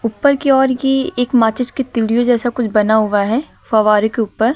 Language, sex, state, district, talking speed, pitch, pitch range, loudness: Hindi, female, Uttar Pradesh, Lucknow, 225 wpm, 235 Hz, 220-260 Hz, -15 LUFS